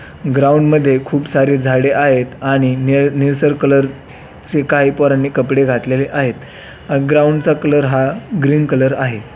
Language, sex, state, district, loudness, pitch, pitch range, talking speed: Marathi, male, Maharashtra, Pune, -14 LUFS, 140 Hz, 135-145 Hz, 140 wpm